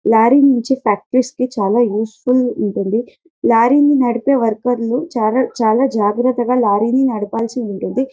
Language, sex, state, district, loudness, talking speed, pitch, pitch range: Telugu, female, Karnataka, Bellary, -15 LUFS, 150 wpm, 240 Hz, 220-255 Hz